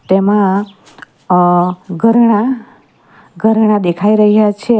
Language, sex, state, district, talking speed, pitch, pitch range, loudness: Gujarati, female, Gujarat, Valsad, 90 wpm, 210 Hz, 185-220 Hz, -12 LUFS